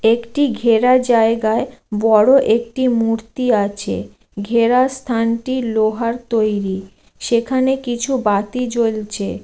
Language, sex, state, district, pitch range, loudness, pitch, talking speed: Bengali, female, West Bengal, Jalpaiguri, 220-250 Hz, -17 LUFS, 230 Hz, 100 wpm